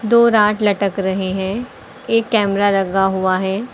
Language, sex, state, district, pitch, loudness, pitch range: Hindi, female, Uttar Pradesh, Lucknow, 200 Hz, -17 LUFS, 190-225 Hz